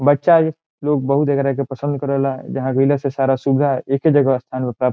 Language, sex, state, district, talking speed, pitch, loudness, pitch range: Bhojpuri, male, Bihar, Saran, 220 wpm, 140 Hz, -18 LUFS, 135-145 Hz